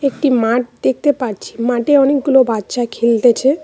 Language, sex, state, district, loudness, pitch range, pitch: Bengali, female, West Bengal, Cooch Behar, -15 LUFS, 235-275 Hz, 250 Hz